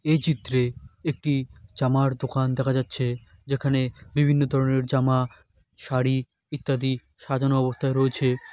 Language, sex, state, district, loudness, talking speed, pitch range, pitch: Bengali, male, West Bengal, Malda, -25 LUFS, 110 wpm, 130-135 Hz, 130 Hz